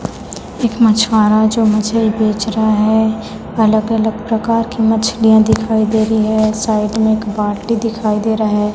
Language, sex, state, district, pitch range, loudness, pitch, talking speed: Hindi, female, Chhattisgarh, Raipur, 215-225 Hz, -14 LUFS, 220 Hz, 170 wpm